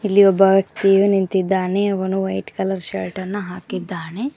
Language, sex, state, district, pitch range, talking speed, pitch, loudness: Kannada, male, Karnataka, Koppal, 185-200 Hz, 125 wpm, 195 Hz, -19 LUFS